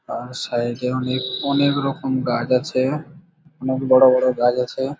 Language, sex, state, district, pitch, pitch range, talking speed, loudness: Bengali, male, West Bengal, Kolkata, 130 Hz, 125-140 Hz, 155 wpm, -20 LUFS